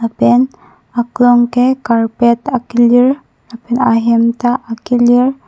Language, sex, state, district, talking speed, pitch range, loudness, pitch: Karbi, female, Assam, Karbi Anglong, 100 wpm, 235-250 Hz, -12 LUFS, 240 Hz